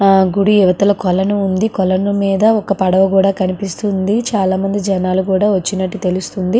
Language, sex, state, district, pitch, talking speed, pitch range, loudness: Telugu, female, Andhra Pradesh, Srikakulam, 195 Hz, 165 wpm, 190-200 Hz, -15 LUFS